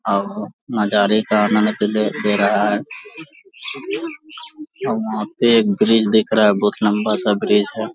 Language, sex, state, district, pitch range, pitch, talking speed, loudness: Hindi, male, Jharkhand, Sahebganj, 105-155 Hz, 110 Hz, 160 wpm, -17 LUFS